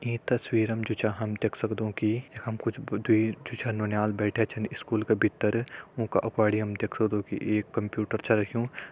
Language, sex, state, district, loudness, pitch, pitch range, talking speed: Hindi, male, Uttarakhand, Tehri Garhwal, -29 LUFS, 110 Hz, 105-115 Hz, 200 wpm